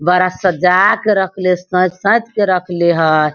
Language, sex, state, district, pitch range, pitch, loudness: Hindi, female, Bihar, Sitamarhi, 175-190 Hz, 180 Hz, -14 LUFS